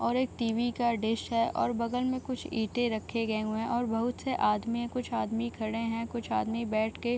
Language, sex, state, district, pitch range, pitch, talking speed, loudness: Hindi, female, Bihar, Saharsa, 225-240 Hz, 235 Hz, 240 wpm, -31 LUFS